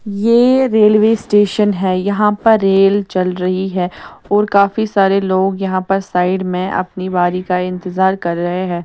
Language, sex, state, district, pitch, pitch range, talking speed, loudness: Hindi, female, Maharashtra, Mumbai Suburban, 195 Hz, 185-205 Hz, 170 wpm, -14 LUFS